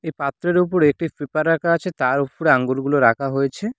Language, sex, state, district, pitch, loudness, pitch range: Bengali, male, West Bengal, Cooch Behar, 155 Hz, -19 LUFS, 140-170 Hz